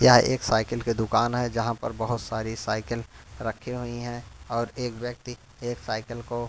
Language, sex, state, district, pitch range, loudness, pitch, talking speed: Hindi, male, Bihar, Katihar, 115-120 Hz, -28 LUFS, 120 Hz, 185 wpm